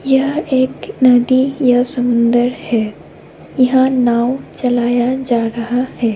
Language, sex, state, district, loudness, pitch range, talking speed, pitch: Hindi, female, Bihar, Lakhisarai, -15 LUFS, 240-260 Hz, 115 wpm, 250 Hz